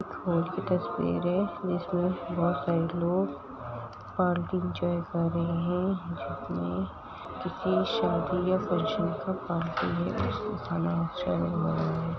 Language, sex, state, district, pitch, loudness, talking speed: Hindi, female, Uttar Pradesh, Muzaffarnagar, 170 Hz, -30 LUFS, 120 wpm